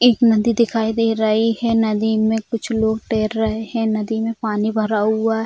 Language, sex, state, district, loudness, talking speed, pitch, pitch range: Hindi, female, Bihar, Jamui, -19 LUFS, 210 wpm, 220 Hz, 220-225 Hz